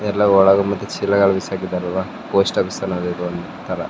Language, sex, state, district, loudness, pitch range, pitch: Kannada, male, Karnataka, Raichur, -19 LUFS, 90-100 Hz, 95 Hz